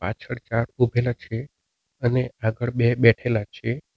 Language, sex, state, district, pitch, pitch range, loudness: Gujarati, male, Gujarat, Navsari, 120 Hz, 110-120 Hz, -23 LUFS